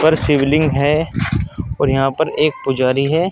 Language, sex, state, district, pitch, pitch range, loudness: Hindi, male, Uttar Pradesh, Saharanpur, 150 Hz, 135-160 Hz, -16 LUFS